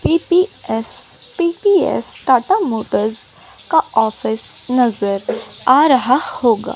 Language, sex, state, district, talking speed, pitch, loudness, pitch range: Hindi, female, Chandigarh, Chandigarh, 90 wpm, 255 Hz, -16 LUFS, 225-345 Hz